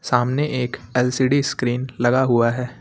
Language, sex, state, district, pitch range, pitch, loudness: Hindi, male, Uttar Pradesh, Lucknow, 120-130 Hz, 125 Hz, -20 LUFS